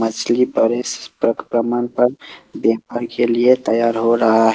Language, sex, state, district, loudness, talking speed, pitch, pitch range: Hindi, male, Assam, Kamrup Metropolitan, -17 LUFS, 120 wpm, 120 Hz, 115-120 Hz